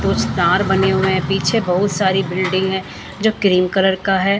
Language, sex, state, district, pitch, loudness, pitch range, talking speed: Hindi, female, Jharkhand, Ranchi, 190 Hz, -17 LUFS, 185-195 Hz, 205 wpm